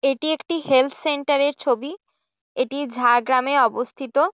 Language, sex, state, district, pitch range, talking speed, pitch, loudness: Bengali, female, West Bengal, Jhargram, 255-295 Hz, 125 wpm, 275 Hz, -21 LUFS